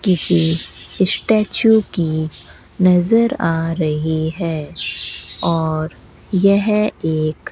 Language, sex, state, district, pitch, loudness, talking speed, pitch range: Hindi, female, Rajasthan, Bikaner, 165 Hz, -16 LUFS, 90 wpm, 155-200 Hz